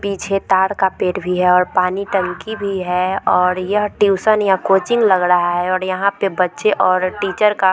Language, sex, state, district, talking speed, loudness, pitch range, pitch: Hindi, female, Bihar, Vaishali, 210 wpm, -16 LUFS, 185-200 Hz, 190 Hz